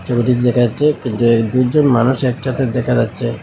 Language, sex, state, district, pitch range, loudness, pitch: Bengali, male, Assam, Hailakandi, 120-130 Hz, -15 LUFS, 125 Hz